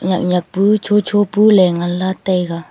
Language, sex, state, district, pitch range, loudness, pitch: Wancho, female, Arunachal Pradesh, Longding, 180-205 Hz, -15 LUFS, 185 Hz